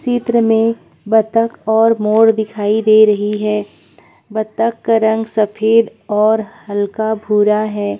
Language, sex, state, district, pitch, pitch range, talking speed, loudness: Hindi, female, Uttar Pradesh, Budaun, 220 Hz, 210-225 Hz, 130 wpm, -15 LUFS